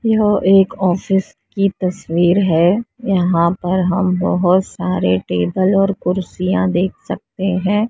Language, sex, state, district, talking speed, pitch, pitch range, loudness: Hindi, female, Maharashtra, Mumbai Suburban, 130 wpm, 185 Hz, 180-195 Hz, -16 LUFS